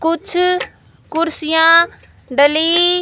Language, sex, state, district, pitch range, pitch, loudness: Hindi, female, Haryana, Jhajjar, 320-350 Hz, 330 Hz, -13 LUFS